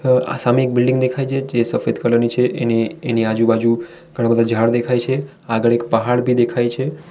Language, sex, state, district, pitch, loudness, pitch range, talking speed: Gujarati, male, Gujarat, Valsad, 120 Hz, -17 LUFS, 115-130 Hz, 210 wpm